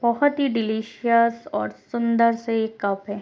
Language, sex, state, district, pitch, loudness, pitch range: Hindi, female, Bihar, East Champaran, 230 Hz, -22 LUFS, 220-235 Hz